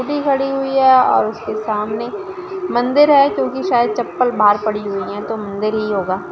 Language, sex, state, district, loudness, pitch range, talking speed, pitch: Hindi, female, Maharashtra, Sindhudurg, -16 LUFS, 205-270 Hz, 190 wpm, 225 Hz